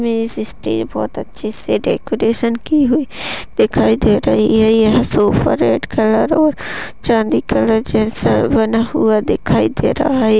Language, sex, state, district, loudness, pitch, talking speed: Hindi, female, Maharashtra, Sindhudurg, -15 LUFS, 220 Hz, 140 wpm